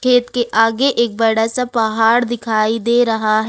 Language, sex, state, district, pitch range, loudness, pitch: Hindi, female, Jharkhand, Ranchi, 225-240 Hz, -15 LUFS, 230 Hz